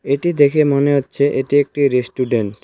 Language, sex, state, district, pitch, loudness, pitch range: Bengali, male, West Bengal, Alipurduar, 140 Hz, -16 LUFS, 130-145 Hz